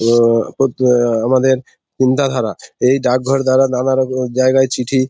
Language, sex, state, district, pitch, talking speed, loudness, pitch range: Bengali, male, West Bengal, Purulia, 130 Hz, 140 wpm, -15 LUFS, 125-130 Hz